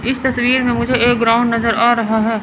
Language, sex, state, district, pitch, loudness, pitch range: Hindi, female, Chandigarh, Chandigarh, 240 Hz, -15 LUFS, 230-245 Hz